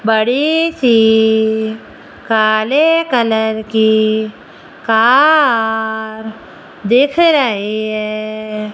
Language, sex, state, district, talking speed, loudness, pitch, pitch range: Hindi, female, Rajasthan, Jaipur, 60 wpm, -13 LUFS, 220 Hz, 220-250 Hz